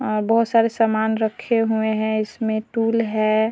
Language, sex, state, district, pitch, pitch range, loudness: Hindi, female, Bihar, Vaishali, 220 Hz, 215-230 Hz, -20 LUFS